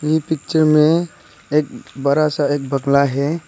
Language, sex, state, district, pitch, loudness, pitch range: Hindi, male, Arunachal Pradesh, Papum Pare, 150 Hz, -17 LUFS, 140-160 Hz